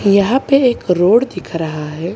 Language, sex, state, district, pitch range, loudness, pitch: Hindi, female, Maharashtra, Mumbai Suburban, 165-240 Hz, -15 LUFS, 190 Hz